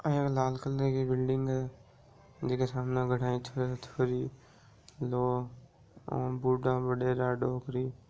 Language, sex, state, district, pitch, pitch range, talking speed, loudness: Marwari, male, Rajasthan, Nagaur, 125 Hz, 125-130 Hz, 150 wpm, -32 LUFS